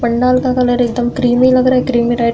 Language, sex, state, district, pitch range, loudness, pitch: Hindi, female, Uttar Pradesh, Hamirpur, 240-255 Hz, -13 LUFS, 245 Hz